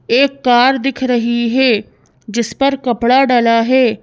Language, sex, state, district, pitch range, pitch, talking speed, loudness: Hindi, female, Madhya Pradesh, Bhopal, 235-265 Hz, 245 Hz, 150 wpm, -13 LUFS